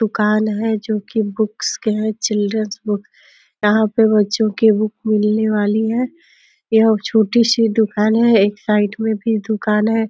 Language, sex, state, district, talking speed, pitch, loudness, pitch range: Hindi, female, Uttar Pradesh, Deoria, 155 wpm, 215 Hz, -17 LUFS, 210-220 Hz